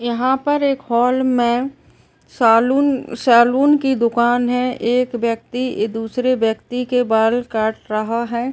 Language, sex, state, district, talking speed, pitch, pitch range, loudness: Hindi, male, Uttar Pradesh, Etah, 135 wpm, 245 Hz, 235-255 Hz, -17 LUFS